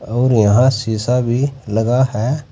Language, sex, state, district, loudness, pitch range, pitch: Hindi, male, Uttar Pradesh, Saharanpur, -16 LUFS, 110-130 Hz, 120 Hz